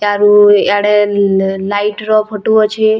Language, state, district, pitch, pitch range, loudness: Sambalpuri, Odisha, Sambalpur, 205 Hz, 205-215 Hz, -11 LUFS